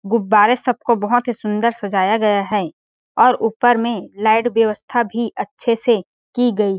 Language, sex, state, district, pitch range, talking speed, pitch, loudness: Hindi, female, Chhattisgarh, Balrampur, 210-240 Hz, 175 wpm, 225 Hz, -17 LUFS